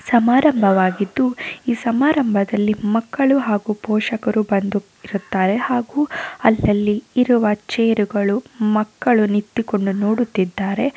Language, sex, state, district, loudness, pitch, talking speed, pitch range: Kannada, female, Karnataka, Raichur, -18 LUFS, 215 Hz, 95 wpm, 205-245 Hz